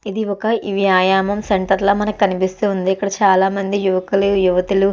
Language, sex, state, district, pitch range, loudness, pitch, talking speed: Telugu, female, Andhra Pradesh, Chittoor, 190-200 Hz, -17 LUFS, 195 Hz, 145 wpm